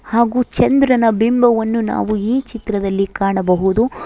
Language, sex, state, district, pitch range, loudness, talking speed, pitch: Kannada, female, Karnataka, Koppal, 195-240 Hz, -16 LUFS, 105 wpm, 225 Hz